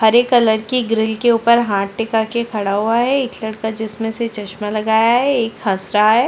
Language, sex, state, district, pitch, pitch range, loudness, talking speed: Hindi, female, Chhattisgarh, Sarguja, 225 Hz, 215-235 Hz, -17 LUFS, 220 wpm